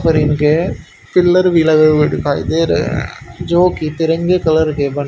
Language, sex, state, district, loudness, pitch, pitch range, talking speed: Hindi, male, Haryana, Charkhi Dadri, -14 LUFS, 160 Hz, 150-170 Hz, 175 wpm